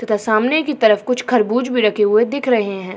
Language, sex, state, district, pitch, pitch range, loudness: Hindi, female, Uttar Pradesh, Jyotiba Phule Nagar, 225 Hz, 210-250 Hz, -16 LUFS